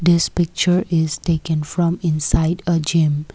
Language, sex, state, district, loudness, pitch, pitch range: English, female, Assam, Kamrup Metropolitan, -19 LUFS, 165 Hz, 155-175 Hz